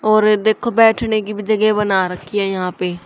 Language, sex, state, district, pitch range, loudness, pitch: Hindi, female, Haryana, Jhajjar, 190-215 Hz, -16 LUFS, 210 Hz